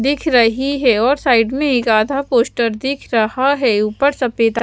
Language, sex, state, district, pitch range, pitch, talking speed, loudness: Hindi, female, Chandigarh, Chandigarh, 230-275 Hz, 250 Hz, 205 wpm, -15 LUFS